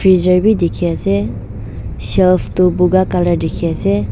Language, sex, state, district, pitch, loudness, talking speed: Nagamese, female, Nagaland, Dimapur, 170 Hz, -14 LUFS, 145 wpm